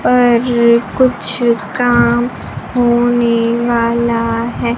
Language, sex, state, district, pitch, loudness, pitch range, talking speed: Hindi, female, Bihar, Kaimur, 235 Hz, -13 LUFS, 235-240 Hz, 75 wpm